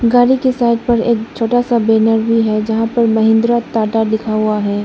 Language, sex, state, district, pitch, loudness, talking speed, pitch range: Hindi, female, Arunachal Pradesh, Lower Dibang Valley, 225 Hz, -14 LUFS, 210 wpm, 220-235 Hz